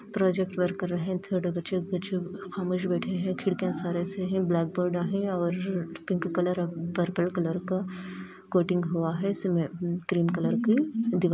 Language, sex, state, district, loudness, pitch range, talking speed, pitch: Hindi, female, Andhra Pradesh, Anantapur, -29 LUFS, 175-190 Hz, 165 wpm, 180 Hz